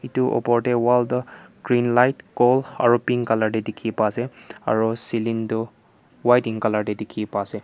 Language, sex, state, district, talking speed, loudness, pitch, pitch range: Nagamese, male, Nagaland, Kohima, 190 wpm, -22 LUFS, 120 Hz, 110-125 Hz